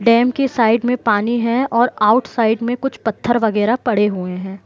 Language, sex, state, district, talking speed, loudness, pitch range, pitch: Hindi, male, Jharkhand, Jamtara, 195 wpm, -17 LUFS, 215-240 Hz, 230 Hz